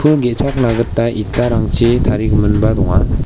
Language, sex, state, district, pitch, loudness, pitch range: Garo, male, Meghalaya, West Garo Hills, 115 Hz, -14 LUFS, 105-120 Hz